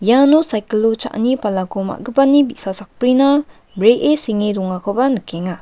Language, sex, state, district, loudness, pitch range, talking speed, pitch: Garo, female, Meghalaya, West Garo Hills, -16 LUFS, 200-265 Hz, 130 wpm, 225 Hz